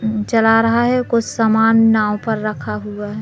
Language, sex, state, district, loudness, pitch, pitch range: Hindi, female, Madhya Pradesh, Katni, -16 LUFS, 220 Hz, 210-225 Hz